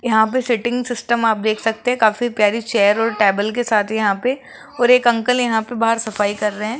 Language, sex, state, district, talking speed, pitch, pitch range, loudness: Hindi, female, Rajasthan, Jaipur, 240 wpm, 225 Hz, 215-245 Hz, -17 LUFS